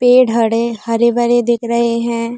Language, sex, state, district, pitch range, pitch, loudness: Hindi, female, Uttar Pradesh, Muzaffarnagar, 230-240 Hz, 235 Hz, -14 LUFS